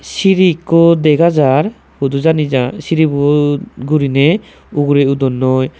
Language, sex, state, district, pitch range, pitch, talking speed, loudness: Chakma, male, Tripura, Dhalai, 135-165 Hz, 150 Hz, 105 wpm, -13 LUFS